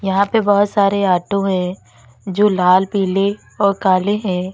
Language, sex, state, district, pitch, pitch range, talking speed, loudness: Hindi, female, Uttar Pradesh, Lalitpur, 195 Hz, 185-200 Hz, 160 wpm, -16 LUFS